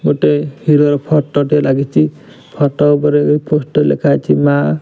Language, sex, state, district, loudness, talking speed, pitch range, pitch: Odia, male, Odisha, Nuapada, -13 LUFS, 135 wpm, 125-150 Hz, 145 Hz